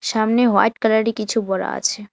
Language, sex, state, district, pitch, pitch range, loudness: Bengali, female, West Bengal, Alipurduar, 220 Hz, 210-230 Hz, -18 LUFS